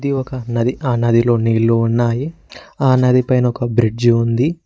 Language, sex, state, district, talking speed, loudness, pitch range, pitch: Telugu, male, Telangana, Mahabubabad, 155 wpm, -16 LUFS, 115-130 Hz, 120 Hz